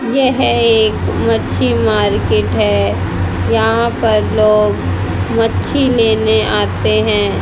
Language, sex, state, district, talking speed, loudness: Hindi, female, Haryana, Jhajjar, 95 wpm, -13 LUFS